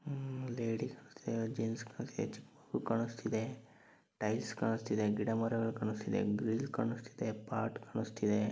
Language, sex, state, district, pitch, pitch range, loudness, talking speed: Kannada, male, Karnataka, Dharwad, 115 Hz, 110-115 Hz, -38 LUFS, 65 wpm